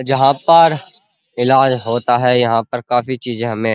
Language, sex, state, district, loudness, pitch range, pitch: Hindi, male, Uttar Pradesh, Muzaffarnagar, -14 LUFS, 120-135 Hz, 125 Hz